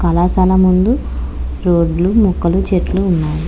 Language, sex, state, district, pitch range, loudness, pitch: Telugu, female, Andhra Pradesh, Srikakulam, 165-190 Hz, -14 LUFS, 180 Hz